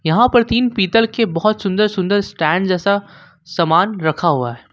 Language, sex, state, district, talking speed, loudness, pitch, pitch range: Hindi, male, Jharkhand, Ranchi, 175 wpm, -16 LUFS, 195 Hz, 165-215 Hz